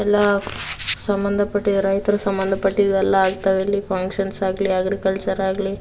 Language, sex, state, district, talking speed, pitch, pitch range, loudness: Kannada, female, Karnataka, Raichur, 125 wpm, 195 Hz, 195-200 Hz, -19 LUFS